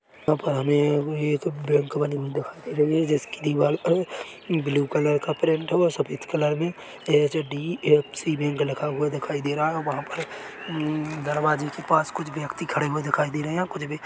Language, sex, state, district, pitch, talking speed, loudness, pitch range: Hindi, male, Chhattisgarh, Rajnandgaon, 150 Hz, 205 wpm, -25 LUFS, 145-155 Hz